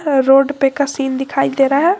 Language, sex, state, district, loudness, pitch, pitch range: Hindi, female, Jharkhand, Garhwa, -15 LUFS, 275 Hz, 270-285 Hz